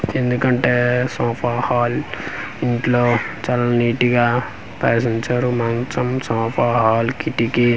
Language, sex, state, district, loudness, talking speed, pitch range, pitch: Telugu, male, Andhra Pradesh, Manyam, -19 LUFS, 100 wpm, 115-125 Hz, 120 Hz